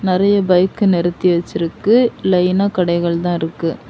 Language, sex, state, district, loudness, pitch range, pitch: Tamil, female, Tamil Nadu, Kanyakumari, -16 LUFS, 170-195 Hz, 180 Hz